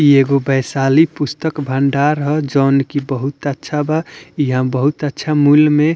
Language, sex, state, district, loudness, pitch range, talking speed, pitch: Bhojpuri, male, Bihar, Muzaffarpur, -15 LUFS, 135-150 Hz, 170 wpm, 145 Hz